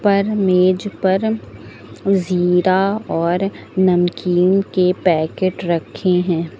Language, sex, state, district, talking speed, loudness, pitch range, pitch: Hindi, female, Uttar Pradesh, Lucknow, 90 wpm, -17 LUFS, 175-195 Hz, 185 Hz